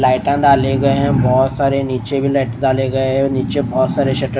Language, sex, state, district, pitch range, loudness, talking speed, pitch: Hindi, male, Odisha, Nuapada, 130-140 Hz, -15 LUFS, 245 wpm, 135 Hz